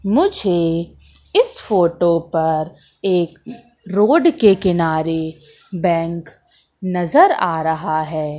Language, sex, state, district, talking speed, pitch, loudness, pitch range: Hindi, female, Madhya Pradesh, Katni, 95 wpm, 170 Hz, -17 LUFS, 160-205 Hz